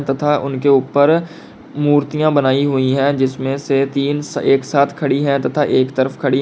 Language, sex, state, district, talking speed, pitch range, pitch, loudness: Hindi, male, Uttar Pradesh, Lalitpur, 170 wpm, 135-145 Hz, 140 Hz, -16 LUFS